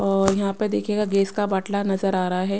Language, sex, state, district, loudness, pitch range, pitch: Hindi, female, Maharashtra, Washim, -23 LUFS, 195-200 Hz, 195 Hz